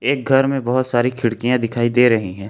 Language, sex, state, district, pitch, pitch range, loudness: Hindi, male, Jharkhand, Ranchi, 120 Hz, 115-130 Hz, -17 LUFS